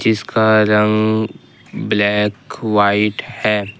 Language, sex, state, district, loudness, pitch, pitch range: Hindi, male, Jharkhand, Ranchi, -16 LUFS, 105 Hz, 105-110 Hz